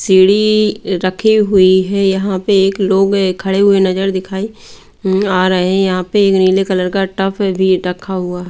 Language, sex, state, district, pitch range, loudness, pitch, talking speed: Hindi, female, Bihar, Patna, 185-200 Hz, -13 LUFS, 190 Hz, 175 wpm